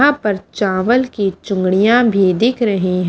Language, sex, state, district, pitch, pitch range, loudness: Hindi, female, Haryana, Charkhi Dadri, 200 Hz, 190-240 Hz, -15 LUFS